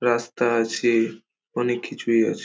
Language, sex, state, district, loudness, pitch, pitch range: Bengali, male, West Bengal, Dakshin Dinajpur, -23 LUFS, 120 Hz, 115-120 Hz